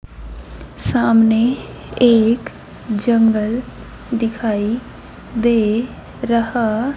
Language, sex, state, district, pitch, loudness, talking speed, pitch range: Hindi, female, Haryana, Jhajjar, 230 Hz, -16 LUFS, 50 wpm, 215-235 Hz